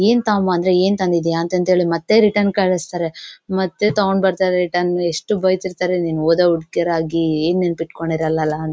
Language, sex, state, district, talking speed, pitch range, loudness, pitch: Kannada, female, Karnataka, Bellary, 165 wpm, 165-190 Hz, -18 LUFS, 180 Hz